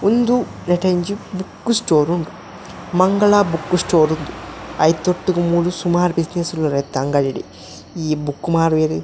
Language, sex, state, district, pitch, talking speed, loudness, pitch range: Tulu, male, Karnataka, Dakshina Kannada, 175 Hz, 125 wpm, -18 LUFS, 155-185 Hz